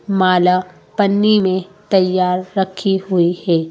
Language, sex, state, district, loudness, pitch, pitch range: Hindi, female, Madhya Pradesh, Bhopal, -16 LUFS, 185 Hz, 180-195 Hz